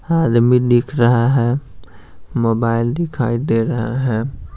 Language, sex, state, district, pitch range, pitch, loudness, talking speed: Hindi, male, Bihar, Patna, 115-125 Hz, 120 Hz, -17 LUFS, 120 wpm